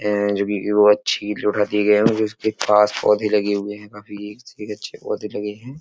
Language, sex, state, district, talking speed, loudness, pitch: Hindi, male, Uttar Pradesh, Etah, 185 wpm, -19 LUFS, 105 Hz